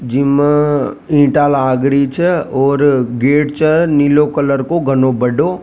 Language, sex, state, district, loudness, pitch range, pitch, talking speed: Rajasthani, male, Rajasthan, Nagaur, -13 LUFS, 135-150 Hz, 145 Hz, 140 wpm